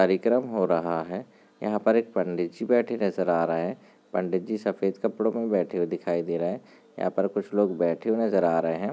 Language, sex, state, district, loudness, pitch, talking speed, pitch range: Hindi, male, Bihar, Darbhanga, -26 LUFS, 95 Hz, 230 wpm, 85-110 Hz